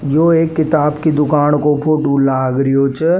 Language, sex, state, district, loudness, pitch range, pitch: Rajasthani, male, Rajasthan, Nagaur, -14 LUFS, 140-155 Hz, 150 Hz